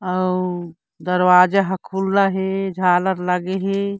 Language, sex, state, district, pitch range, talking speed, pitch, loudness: Chhattisgarhi, female, Chhattisgarh, Korba, 180-195 Hz, 120 wpm, 185 Hz, -19 LUFS